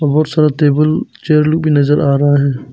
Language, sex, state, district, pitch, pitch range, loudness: Hindi, male, Arunachal Pradesh, Papum Pare, 150 Hz, 145-155 Hz, -13 LUFS